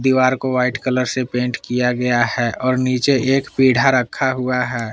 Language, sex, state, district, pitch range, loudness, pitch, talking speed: Hindi, male, Jharkhand, Palamu, 125-130 Hz, -18 LUFS, 130 Hz, 195 wpm